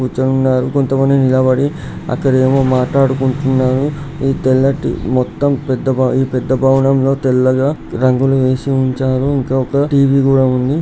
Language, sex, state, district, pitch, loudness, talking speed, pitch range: Telugu, male, Andhra Pradesh, Srikakulam, 130 Hz, -14 LUFS, 120 wpm, 130-135 Hz